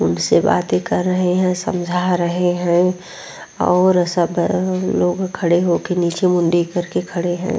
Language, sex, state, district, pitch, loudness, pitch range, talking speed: Hindi, female, Uttar Pradesh, Muzaffarnagar, 180 Hz, -17 LUFS, 175-180 Hz, 140 wpm